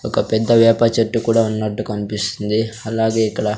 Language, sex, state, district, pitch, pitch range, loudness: Telugu, male, Andhra Pradesh, Sri Satya Sai, 110 Hz, 105-115 Hz, -17 LUFS